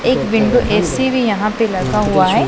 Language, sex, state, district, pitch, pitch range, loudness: Hindi, female, Punjab, Pathankot, 225 Hz, 215-245 Hz, -15 LUFS